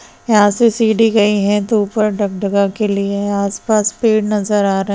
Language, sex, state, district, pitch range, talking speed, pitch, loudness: Hindi, female, Bihar, East Champaran, 200-215 Hz, 170 wpm, 210 Hz, -15 LUFS